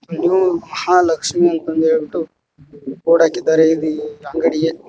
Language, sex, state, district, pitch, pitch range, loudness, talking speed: Kannada, male, Karnataka, Koppal, 160 Hz, 155-170 Hz, -16 LUFS, 100 wpm